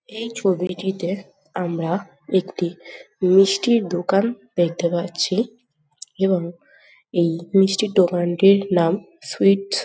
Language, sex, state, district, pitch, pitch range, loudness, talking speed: Bengali, female, West Bengal, Jhargram, 185 Hz, 175-195 Hz, -20 LUFS, 90 wpm